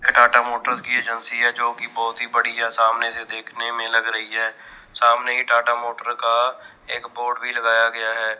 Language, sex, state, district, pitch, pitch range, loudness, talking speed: Hindi, male, Chandigarh, Chandigarh, 115 Hz, 115-120 Hz, -20 LUFS, 200 wpm